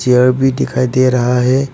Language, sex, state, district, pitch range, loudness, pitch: Hindi, male, Arunachal Pradesh, Papum Pare, 125-130 Hz, -13 LUFS, 130 Hz